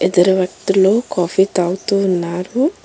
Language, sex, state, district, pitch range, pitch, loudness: Telugu, female, Telangana, Hyderabad, 180-200 Hz, 190 Hz, -16 LUFS